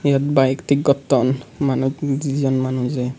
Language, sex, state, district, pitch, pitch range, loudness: Chakma, male, Tripura, Unakoti, 135 Hz, 130-140 Hz, -19 LUFS